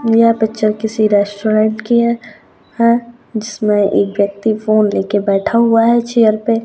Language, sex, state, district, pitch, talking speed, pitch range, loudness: Hindi, female, Rajasthan, Churu, 220 Hz, 145 wpm, 210-230 Hz, -14 LUFS